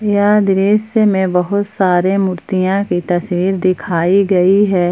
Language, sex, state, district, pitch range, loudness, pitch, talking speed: Hindi, female, Jharkhand, Palamu, 180-200 Hz, -14 LUFS, 190 Hz, 135 wpm